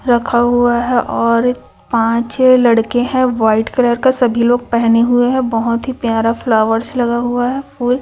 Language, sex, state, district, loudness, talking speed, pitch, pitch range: Hindi, female, Chhattisgarh, Raipur, -14 LUFS, 170 wpm, 240 Hz, 230-250 Hz